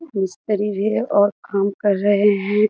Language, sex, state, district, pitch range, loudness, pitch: Hindi, female, Bihar, Kishanganj, 200-210 Hz, -19 LUFS, 205 Hz